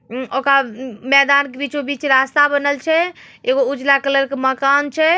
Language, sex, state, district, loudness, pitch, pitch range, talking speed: Magahi, female, Bihar, Samastipur, -16 LUFS, 280 Hz, 270-290 Hz, 175 wpm